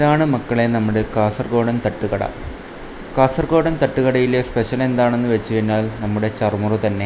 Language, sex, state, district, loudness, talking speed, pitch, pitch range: Malayalam, male, Kerala, Kasaragod, -19 LUFS, 110 wpm, 115 Hz, 110-130 Hz